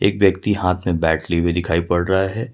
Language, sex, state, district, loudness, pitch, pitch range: Hindi, male, Jharkhand, Ranchi, -19 LUFS, 90 Hz, 85-100 Hz